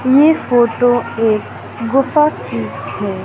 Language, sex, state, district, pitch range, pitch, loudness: Hindi, male, Madhya Pradesh, Katni, 210-270 Hz, 240 Hz, -15 LUFS